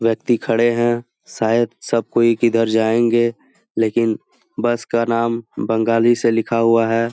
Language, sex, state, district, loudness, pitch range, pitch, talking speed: Hindi, male, Jharkhand, Jamtara, -18 LUFS, 115-120 Hz, 115 Hz, 145 wpm